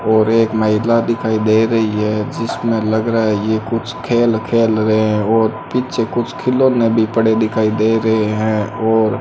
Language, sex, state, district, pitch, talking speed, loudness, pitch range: Hindi, male, Rajasthan, Bikaner, 110 Hz, 180 wpm, -15 LUFS, 110-115 Hz